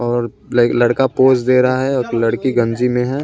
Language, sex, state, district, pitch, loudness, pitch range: Hindi, male, Bihar, West Champaran, 125 Hz, -15 LUFS, 120-130 Hz